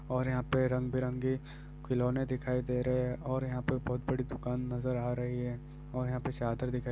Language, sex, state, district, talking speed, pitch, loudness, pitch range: Hindi, male, Bihar, Saran, 215 wpm, 125 Hz, -34 LUFS, 125-130 Hz